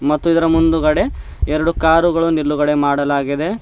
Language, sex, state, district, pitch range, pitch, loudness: Kannada, male, Karnataka, Bidar, 150-165 Hz, 155 Hz, -16 LUFS